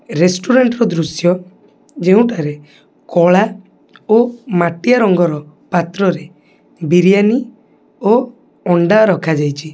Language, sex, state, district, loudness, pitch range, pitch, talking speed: Odia, male, Odisha, Khordha, -14 LUFS, 165-220 Hz, 180 Hz, 75 wpm